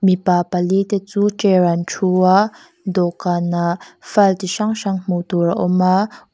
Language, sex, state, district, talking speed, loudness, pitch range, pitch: Mizo, female, Mizoram, Aizawl, 190 wpm, -17 LUFS, 180-200 Hz, 185 Hz